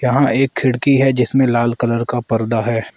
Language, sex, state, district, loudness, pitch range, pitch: Hindi, male, Arunachal Pradesh, Lower Dibang Valley, -16 LUFS, 115-135 Hz, 125 Hz